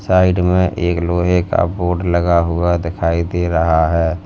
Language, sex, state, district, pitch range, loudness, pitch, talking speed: Hindi, male, Uttar Pradesh, Lalitpur, 85-90 Hz, -16 LUFS, 85 Hz, 170 wpm